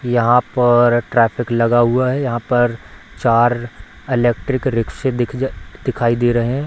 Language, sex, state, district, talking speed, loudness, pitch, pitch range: Hindi, female, Bihar, Samastipur, 135 wpm, -17 LUFS, 120 Hz, 115-125 Hz